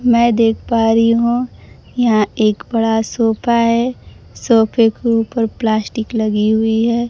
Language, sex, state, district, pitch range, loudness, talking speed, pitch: Hindi, female, Bihar, Kaimur, 220-235 Hz, -15 LUFS, 145 wpm, 230 Hz